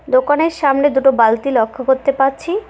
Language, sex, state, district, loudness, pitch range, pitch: Bengali, female, West Bengal, Cooch Behar, -15 LUFS, 260-290 Hz, 270 Hz